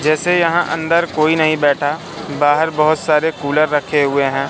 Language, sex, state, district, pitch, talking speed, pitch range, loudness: Hindi, male, Madhya Pradesh, Katni, 155 Hz, 175 wpm, 145-165 Hz, -15 LUFS